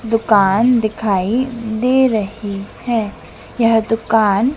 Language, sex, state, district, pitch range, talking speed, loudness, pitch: Hindi, female, Madhya Pradesh, Dhar, 210-240 Hz, 90 wpm, -16 LUFS, 225 Hz